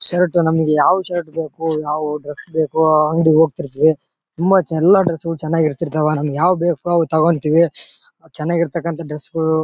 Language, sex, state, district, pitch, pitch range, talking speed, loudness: Kannada, male, Karnataka, Bellary, 160 Hz, 155-170 Hz, 160 wpm, -17 LUFS